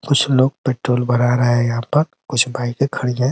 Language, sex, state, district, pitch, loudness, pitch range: Hindi, male, Uttar Pradesh, Ghazipur, 125 Hz, -18 LUFS, 120-135 Hz